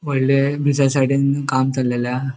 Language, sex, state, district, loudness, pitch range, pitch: Konkani, male, Goa, North and South Goa, -18 LUFS, 130-140 Hz, 135 Hz